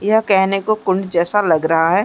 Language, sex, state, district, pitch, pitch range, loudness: Hindi, female, Chhattisgarh, Bastar, 195 Hz, 170-205 Hz, -16 LUFS